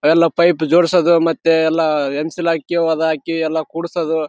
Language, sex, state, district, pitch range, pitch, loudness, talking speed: Kannada, male, Karnataka, Raichur, 160-170 Hz, 165 Hz, -16 LUFS, 165 wpm